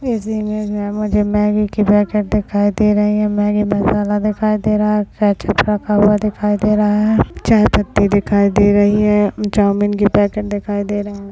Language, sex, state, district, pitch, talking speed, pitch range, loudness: Hindi, male, Maharashtra, Dhule, 210 Hz, 175 wpm, 205-210 Hz, -15 LUFS